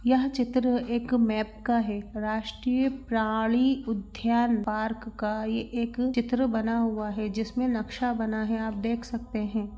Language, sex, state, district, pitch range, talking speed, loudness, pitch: Hindi, female, Bihar, Saran, 220-245 Hz, 155 wpm, -28 LUFS, 230 Hz